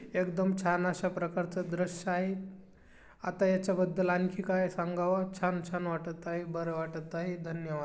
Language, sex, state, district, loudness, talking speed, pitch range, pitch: Marathi, female, Maharashtra, Chandrapur, -33 LUFS, 155 wpm, 170-185 Hz, 180 Hz